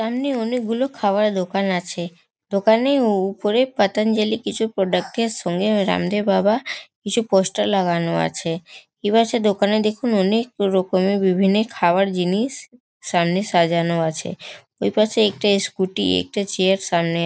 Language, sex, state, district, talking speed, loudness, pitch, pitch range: Bengali, female, West Bengal, North 24 Parganas, 130 wpm, -20 LUFS, 200 Hz, 185-220 Hz